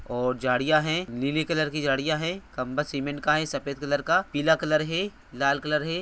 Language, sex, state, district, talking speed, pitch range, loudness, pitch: Hindi, male, Bihar, Purnia, 200 wpm, 140-155 Hz, -26 LUFS, 150 Hz